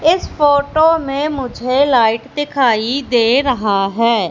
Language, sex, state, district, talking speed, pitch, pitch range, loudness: Hindi, female, Madhya Pradesh, Katni, 125 wpm, 265 Hz, 230-285 Hz, -15 LUFS